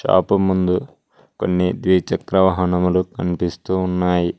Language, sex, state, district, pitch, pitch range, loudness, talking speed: Telugu, male, Telangana, Mahabubabad, 90 Hz, 90-95 Hz, -19 LUFS, 95 wpm